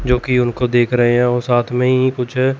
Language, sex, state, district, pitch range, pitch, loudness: Hindi, male, Chandigarh, Chandigarh, 120-125 Hz, 125 Hz, -16 LUFS